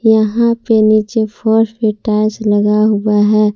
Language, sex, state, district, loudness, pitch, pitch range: Hindi, female, Jharkhand, Palamu, -13 LUFS, 215 Hz, 210-220 Hz